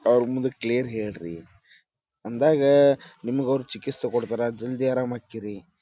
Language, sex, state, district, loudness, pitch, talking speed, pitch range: Kannada, male, Karnataka, Dharwad, -24 LUFS, 120 Hz, 125 wpm, 110-130 Hz